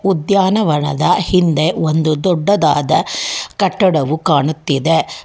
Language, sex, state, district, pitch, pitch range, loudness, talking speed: Kannada, female, Karnataka, Bangalore, 165 Hz, 155-195 Hz, -15 LUFS, 70 wpm